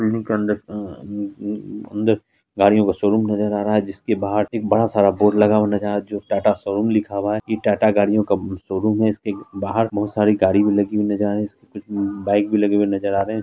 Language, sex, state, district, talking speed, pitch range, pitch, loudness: Hindi, female, Bihar, Araria, 230 wpm, 100-105 Hz, 105 Hz, -20 LUFS